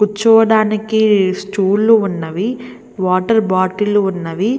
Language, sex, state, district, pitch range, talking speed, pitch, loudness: Telugu, female, Andhra Pradesh, Visakhapatnam, 190-220 Hz, 80 wpm, 210 Hz, -14 LUFS